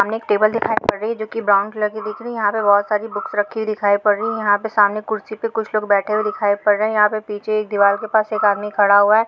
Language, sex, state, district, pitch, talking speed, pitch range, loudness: Hindi, female, Maharashtra, Chandrapur, 210 Hz, 305 wpm, 205-215 Hz, -18 LUFS